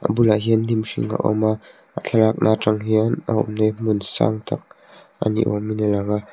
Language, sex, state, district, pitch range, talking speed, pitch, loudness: Mizo, male, Mizoram, Aizawl, 105-110 Hz, 235 wpm, 110 Hz, -20 LUFS